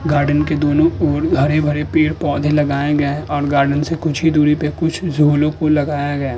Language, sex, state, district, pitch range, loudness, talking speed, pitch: Hindi, male, Uttar Pradesh, Budaun, 145-155 Hz, -16 LUFS, 200 wpm, 150 Hz